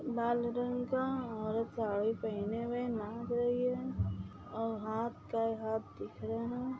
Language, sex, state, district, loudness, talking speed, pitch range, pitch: Hindi, female, Bihar, Gopalganj, -36 LUFS, 90 wpm, 215-245 Hz, 225 Hz